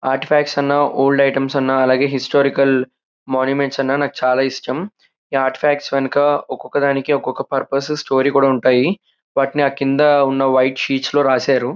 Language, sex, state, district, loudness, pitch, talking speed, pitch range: Telugu, male, Andhra Pradesh, Krishna, -17 LUFS, 135 Hz, 170 wpm, 130-140 Hz